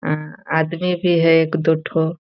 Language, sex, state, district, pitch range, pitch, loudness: Hindi, male, Bihar, Saran, 160-170 Hz, 165 Hz, -18 LUFS